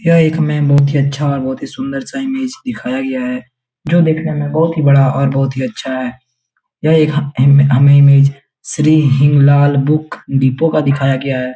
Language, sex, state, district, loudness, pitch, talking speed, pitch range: Hindi, male, Bihar, Jahanabad, -13 LUFS, 140 Hz, 215 wpm, 135-155 Hz